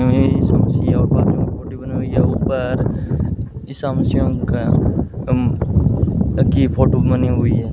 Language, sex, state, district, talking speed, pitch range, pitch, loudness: Hindi, male, Rajasthan, Bikaner, 145 wpm, 110-130 Hz, 120 Hz, -17 LUFS